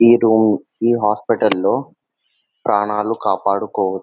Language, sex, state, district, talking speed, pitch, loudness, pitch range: Telugu, male, Telangana, Nalgonda, 105 wpm, 105 Hz, -17 LUFS, 100-115 Hz